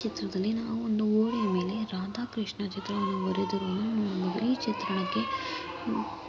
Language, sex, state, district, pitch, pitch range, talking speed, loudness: Kannada, female, Karnataka, Mysore, 210 Hz, 190-225 Hz, 230 wpm, -31 LUFS